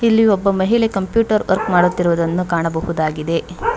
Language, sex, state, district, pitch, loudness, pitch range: Kannada, female, Karnataka, Bangalore, 185 Hz, -17 LUFS, 170-220 Hz